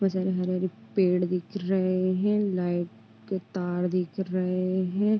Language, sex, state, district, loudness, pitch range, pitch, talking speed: Hindi, female, Uttar Pradesh, Deoria, -27 LUFS, 180-190 Hz, 185 Hz, 175 wpm